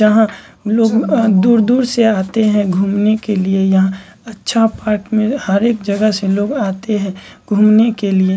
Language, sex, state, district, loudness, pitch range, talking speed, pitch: Hindi, male, Bihar, Bhagalpur, -14 LUFS, 195-225 Hz, 170 wpm, 210 Hz